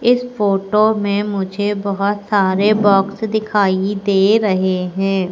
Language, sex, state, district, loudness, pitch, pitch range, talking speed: Hindi, female, Madhya Pradesh, Katni, -16 LUFS, 200 Hz, 195-210 Hz, 125 wpm